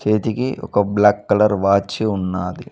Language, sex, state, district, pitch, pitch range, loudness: Telugu, male, Telangana, Mahabubabad, 105 Hz, 100-105 Hz, -18 LUFS